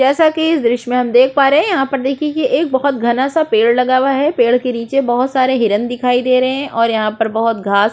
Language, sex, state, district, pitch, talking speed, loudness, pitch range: Hindi, female, Chhattisgarh, Korba, 255 Hz, 280 wpm, -14 LUFS, 235-275 Hz